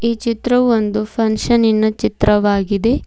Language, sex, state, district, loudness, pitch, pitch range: Kannada, female, Karnataka, Bidar, -16 LUFS, 220 Hz, 215-235 Hz